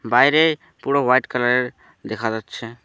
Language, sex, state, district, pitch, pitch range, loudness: Bengali, male, West Bengal, Alipurduar, 125 Hz, 115-140 Hz, -19 LUFS